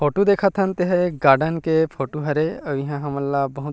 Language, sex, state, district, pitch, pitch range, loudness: Chhattisgarhi, male, Chhattisgarh, Rajnandgaon, 150 Hz, 140-180 Hz, -21 LUFS